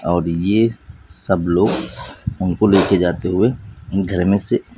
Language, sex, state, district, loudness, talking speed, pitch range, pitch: Hindi, male, Bihar, West Champaran, -18 LUFS, 140 wpm, 90-105 Hz, 95 Hz